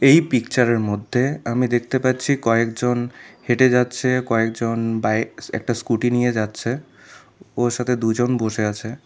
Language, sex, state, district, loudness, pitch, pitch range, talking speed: Bengali, male, Tripura, South Tripura, -20 LUFS, 120 Hz, 115-125 Hz, 140 wpm